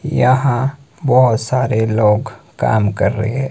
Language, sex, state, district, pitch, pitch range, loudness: Hindi, male, Himachal Pradesh, Shimla, 125 Hz, 110-135 Hz, -15 LUFS